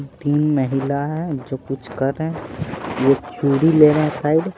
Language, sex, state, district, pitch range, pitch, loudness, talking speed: Hindi, male, Bihar, Patna, 135-155 Hz, 145 Hz, -19 LUFS, 195 wpm